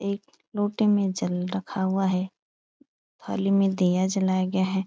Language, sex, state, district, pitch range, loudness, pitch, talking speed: Hindi, female, Uttar Pradesh, Etah, 185-200 Hz, -25 LUFS, 190 Hz, 160 wpm